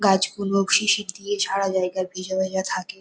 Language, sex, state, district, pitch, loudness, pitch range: Bengali, female, West Bengal, North 24 Parganas, 195 Hz, -23 LUFS, 190-200 Hz